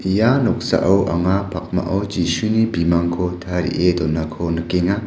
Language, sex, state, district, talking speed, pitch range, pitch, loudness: Garo, male, Meghalaya, West Garo Hills, 105 wpm, 85-100 Hz, 90 Hz, -19 LUFS